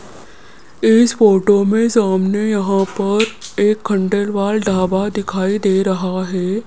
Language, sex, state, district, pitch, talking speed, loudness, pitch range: Hindi, male, Rajasthan, Jaipur, 200 Hz, 115 wpm, -16 LUFS, 190-215 Hz